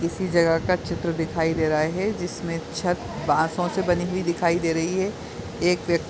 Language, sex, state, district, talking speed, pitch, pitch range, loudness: Hindi, female, Chhattisgarh, Bilaspur, 195 wpm, 170 Hz, 165-180 Hz, -24 LUFS